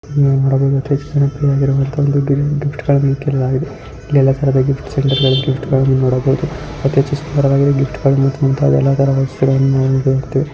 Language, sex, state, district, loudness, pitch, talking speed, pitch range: Kannada, female, Karnataka, Mysore, -15 LUFS, 135 Hz, 155 wpm, 135-140 Hz